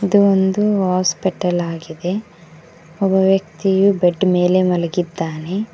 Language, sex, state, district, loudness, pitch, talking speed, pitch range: Kannada, female, Karnataka, Koppal, -17 LUFS, 180 Hz, 95 wpm, 170-195 Hz